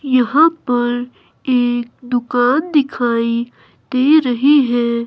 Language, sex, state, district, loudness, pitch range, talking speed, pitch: Hindi, female, Himachal Pradesh, Shimla, -15 LUFS, 240-275 Hz, 95 wpm, 245 Hz